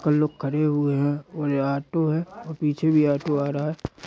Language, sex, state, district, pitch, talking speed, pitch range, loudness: Hindi, male, Chhattisgarh, Raigarh, 150 Hz, 235 wpm, 145-155 Hz, -24 LUFS